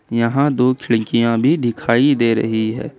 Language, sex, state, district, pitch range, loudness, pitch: Hindi, male, Jharkhand, Ranchi, 115-130 Hz, -16 LUFS, 115 Hz